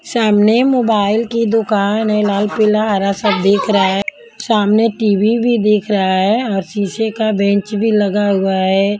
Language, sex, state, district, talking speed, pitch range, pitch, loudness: Hindi, female, Punjab, Kapurthala, 175 wpm, 200-220 Hz, 210 Hz, -14 LUFS